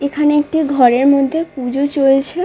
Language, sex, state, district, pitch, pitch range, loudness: Bengali, female, West Bengal, Dakshin Dinajpur, 280 Hz, 270-300 Hz, -14 LUFS